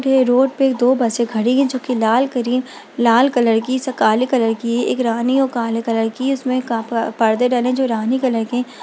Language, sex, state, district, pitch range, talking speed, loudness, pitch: Hindi, female, Bihar, Bhagalpur, 230-255 Hz, 225 wpm, -17 LUFS, 245 Hz